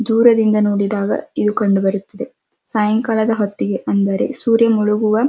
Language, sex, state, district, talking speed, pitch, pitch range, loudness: Kannada, female, Karnataka, Dharwad, 125 wpm, 215 Hz, 205-225 Hz, -16 LUFS